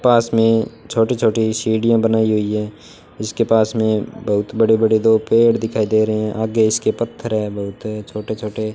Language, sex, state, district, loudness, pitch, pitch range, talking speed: Hindi, male, Rajasthan, Bikaner, -18 LUFS, 110 Hz, 105-115 Hz, 185 wpm